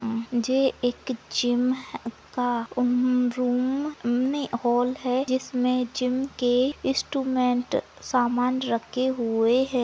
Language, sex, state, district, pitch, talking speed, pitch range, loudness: Hindi, female, Maharashtra, Nagpur, 250 Hz, 110 wpm, 245-260 Hz, -25 LUFS